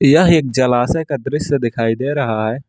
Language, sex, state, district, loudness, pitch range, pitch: Hindi, male, Jharkhand, Ranchi, -16 LUFS, 120-145 Hz, 140 Hz